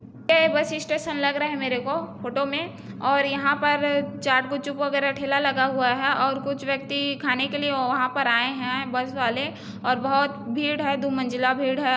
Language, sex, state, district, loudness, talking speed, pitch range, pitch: Hindi, female, Chhattisgarh, Bilaspur, -24 LUFS, 195 wpm, 260-285 Hz, 275 Hz